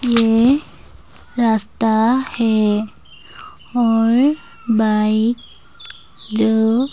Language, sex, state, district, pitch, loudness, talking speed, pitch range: Hindi, female, Uttar Pradesh, Budaun, 225 Hz, -16 LUFS, 60 wpm, 220-245 Hz